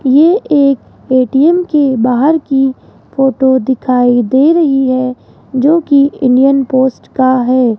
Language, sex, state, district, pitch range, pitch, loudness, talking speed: Hindi, female, Rajasthan, Jaipur, 255-285 Hz, 265 Hz, -11 LUFS, 125 wpm